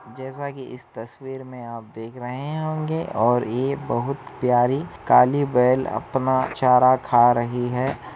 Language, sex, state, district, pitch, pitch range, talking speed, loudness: Hindi, female, Chhattisgarh, Bastar, 125 Hz, 120-135 Hz, 145 wpm, -21 LUFS